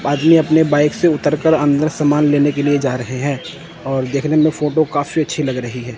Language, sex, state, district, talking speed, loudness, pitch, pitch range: Hindi, male, Chandigarh, Chandigarh, 220 wpm, -16 LUFS, 145 Hz, 140-155 Hz